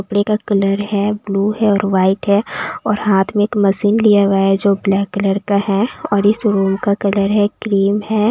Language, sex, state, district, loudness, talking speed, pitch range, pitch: Hindi, female, Maharashtra, Mumbai Suburban, -15 LUFS, 215 wpm, 195-210 Hz, 200 Hz